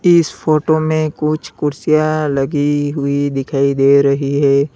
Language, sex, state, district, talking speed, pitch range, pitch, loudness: Hindi, male, Uttar Pradesh, Lalitpur, 140 wpm, 140-155 Hz, 145 Hz, -15 LUFS